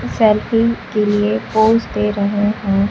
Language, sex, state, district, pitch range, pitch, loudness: Hindi, female, Bihar, Kaimur, 205-220 Hz, 210 Hz, -16 LUFS